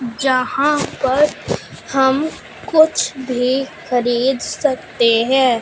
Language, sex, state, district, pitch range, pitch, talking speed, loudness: Hindi, female, Punjab, Fazilka, 250-285 Hz, 265 Hz, 85 wpm, -17 LUFS